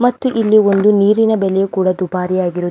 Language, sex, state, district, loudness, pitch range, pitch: Kannada, female, Karnataka, Belgaum, -14 LUFS, 185-215 Hz, 195 Hz